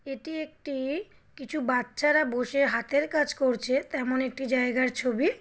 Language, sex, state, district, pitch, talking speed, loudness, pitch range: Bengali, female, West Bengal, Kolkata, 270 Hz, 135 wpm, -27 LUFS, 255-300 Hz